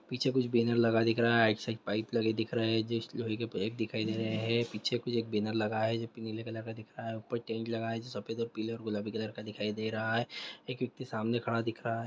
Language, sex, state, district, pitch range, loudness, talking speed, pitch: Hindi, male, West Bengal, Jhargram, 110-115 Hz, -33 LUFS, 290 wpm, 115 Hz